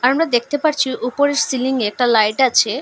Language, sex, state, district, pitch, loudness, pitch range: Bengali, female, Assam, Hailakandi, 255 Hz, -17 LUFS, 240-285 Hz